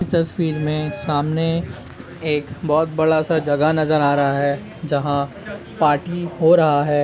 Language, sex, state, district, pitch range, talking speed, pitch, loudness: Hindi, male, Uttar Pradesh, Ghazipur, 145-160 Hz, 145 wpm, 150 Hz, -19 LUFS